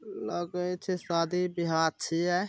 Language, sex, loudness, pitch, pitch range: Bhojpuri, male, -30 LUFS, 175 Hz, 170-180 Hz